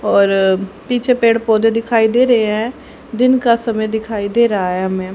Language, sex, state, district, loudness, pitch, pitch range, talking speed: Hindi, female, Haryana, Rohtak, -15 LUFS, 225 Hz, 200-235 Hz, 185 wpm